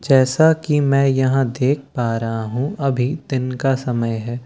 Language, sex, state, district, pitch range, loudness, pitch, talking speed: Hindi, male, Bihar, Katihar, 120-140 Hz, -19 LUFS, 130 Hz, 175 wpm